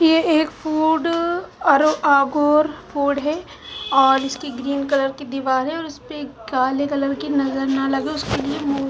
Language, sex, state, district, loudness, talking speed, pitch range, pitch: Hindi, female, Punjab, Fazilka, -20 LUFS, 170 wpm, 270-310 Hz, 285 Hz